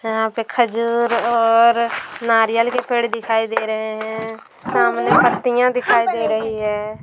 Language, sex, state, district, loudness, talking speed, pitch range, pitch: Bhojpuri, female, Bihar, Saran, -18 LUFS, 145 wpm, 220-235 Hz, 230 Hz